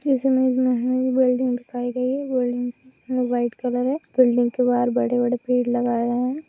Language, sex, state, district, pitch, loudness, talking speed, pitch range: Hindi, female, Bihar, Saharsa, 250 Hz, -22 LUFS, 195 wpm, 245-255 Hz